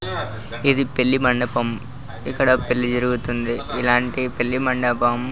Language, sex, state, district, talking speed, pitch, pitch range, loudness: Telugu, male, Telangana, Nalgonda, 125 wpm, 125 Hz, 120-130 Hz, -21 LUFS